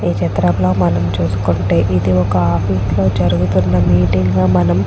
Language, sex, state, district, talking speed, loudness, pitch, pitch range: Telugu, female, Andhra Pradesh, Chittoor, 150 wpm, -14 LUFS, 90 Hz, 90-95 Hz